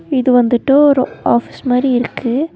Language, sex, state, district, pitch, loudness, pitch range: Tamil, female, Tamil Nadu, Nilgiris, 255 Hz, -14 LUFS, 245-270 Hz